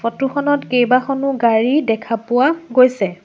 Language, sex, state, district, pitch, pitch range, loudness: Assamese, female, Assam, Sonitpur, 255 Hz, 230-275 Hz, -16 LUFS